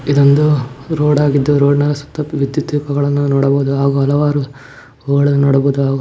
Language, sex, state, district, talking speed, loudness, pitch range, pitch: Kannada, male, Karnataka, Belgaum, 140 wpm, -14 LUFS, 140-145 Hz, 140 Hz